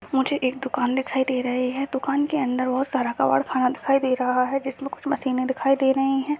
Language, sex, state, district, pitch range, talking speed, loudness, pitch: Hindi, female, Uttar Pradesh, Deoria, 255-275 Hz, 235 wpm, -23 LUFS, 265 Hz